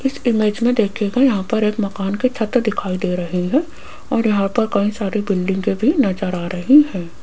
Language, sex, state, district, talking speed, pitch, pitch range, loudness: Hindi, female, Rajasthan, Jaipur, 205 wpm, 210 Hz, 195-235 Hz, -18 LUFS